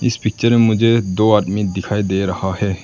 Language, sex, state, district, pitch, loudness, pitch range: Hindi, male, Arunachal Pradesh, Lower Dibang Valley, 105 Hz, -16 LUFS, 95-115 Hz